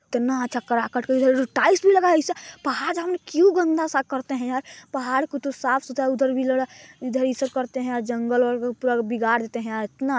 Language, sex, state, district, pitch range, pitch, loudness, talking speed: Hindi, male, Chhattisgarh, Balrampur, 245-275 Hz, 260 Hz, -23 LUFS, 210 wpm